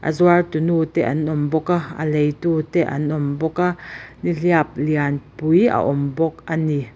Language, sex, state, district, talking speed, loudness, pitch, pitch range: Mizo, female, Mizoram, Aizawl, 190 wpm, -20 LUFS, 160 Hz, 150-170 Hz